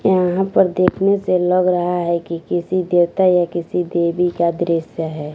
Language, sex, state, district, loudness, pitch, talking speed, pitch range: Hindi, female, Bihar, West Champaran, -17 LUFS, 175 Hz, 180 wpm, 170-185 Hz